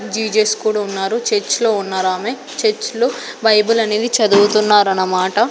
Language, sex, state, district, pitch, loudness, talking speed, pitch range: Telugu, female, Andhra Pradesh, Sri Satya Sai, 215 Hz, -16 LUFS, 120 wpm, 205-235 Hz